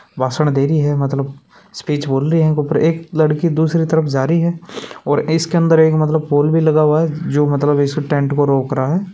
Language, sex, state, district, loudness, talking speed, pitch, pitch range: Hindi, male, Rajasthan, Churu, -15 LUFS, 225 wpm, 155 Hz, 145-160 Hz